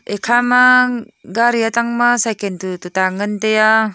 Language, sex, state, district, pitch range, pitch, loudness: Wancho, female, Arunachal Pradesh, Longding, 205-240 Hz, 225 Hz, -15 LUFS